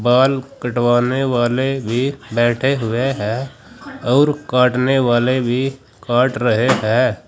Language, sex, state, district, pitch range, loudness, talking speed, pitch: Hindi, male, Uttar Pradesh, Saharanpur, 120-135 Hz, -17 LUFS, 115 wpm, 125 Hz